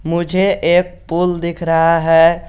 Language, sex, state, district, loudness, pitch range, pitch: Hindi, male, Jharkhand, Garhwa, -15 LUFS, 165-180 Hz, 170 Hz